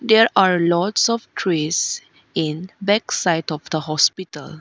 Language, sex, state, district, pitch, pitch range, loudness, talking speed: English, female, Arunachal Pradesh, Lower Dibang Valley, 175 Hz, 155-205 Hz, -19 LUFS, 145 wpm